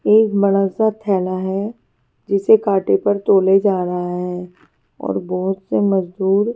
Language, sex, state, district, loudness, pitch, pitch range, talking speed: Hindi, female, Haryana, Charkhi Dadri, -17 LUFS, 195 Hz, 185-200 Hz, 145 wpm